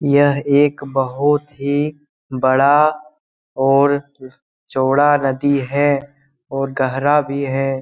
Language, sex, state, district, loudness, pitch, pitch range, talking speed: Hindi, male, Bihar, Saran, -17 LUFS, 140 Hz, 135-145 Hz, 105 wpm